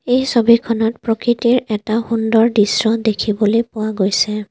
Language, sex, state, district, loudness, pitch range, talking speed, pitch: Assamese, female, Assam, Kamrup Metropolitan, -16 LUFS, 215-235 Hz, 120 wpm, 225 Hz